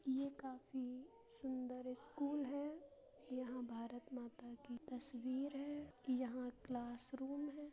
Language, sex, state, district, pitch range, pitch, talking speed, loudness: Hindi, female, Uttar Pradesh, Budaun, 250-280 Hz, 260 Hz, 110 wpm, -47 LUFS